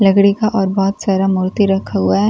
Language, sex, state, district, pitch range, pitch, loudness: Hindi, female, Bihar, Katihar, 190-200 Hz, 195 Hz, -15 LUFS